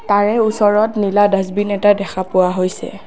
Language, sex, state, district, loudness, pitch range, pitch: Assamese, female, Assam, Kamrup Metropolitan, -15 LUFS, 190-205 Hz, 205 Hz